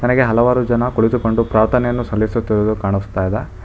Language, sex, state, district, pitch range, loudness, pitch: Kannada, male, Karnataka, Bangalore, 105-120 Hz, -16 LUFS, 115 Hz